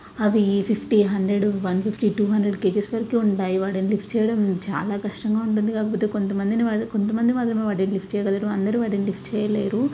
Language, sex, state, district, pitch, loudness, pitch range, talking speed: Telugu, female, Karnataka, Bellary, 210 Hz, -23 LUFS, 200-220 Hz, 140 wpm